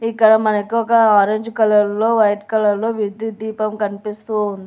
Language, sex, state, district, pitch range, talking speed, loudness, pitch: Telugu, female, Telangana, Hyderabad, 210-225 Hz, 155 wpm, -17 LUFS, 215 Hz